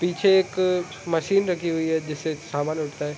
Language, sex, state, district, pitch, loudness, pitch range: Hindi, male, Jharkhand, Sahebganj, 165 Hz, -24 LUFS, 155-180 Hz